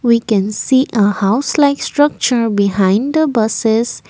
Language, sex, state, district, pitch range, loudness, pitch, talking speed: English, female, Assam, Kamrup Metropolitan, 210-270 Hz, -14 LUFS, 230 Hz, 145 wpm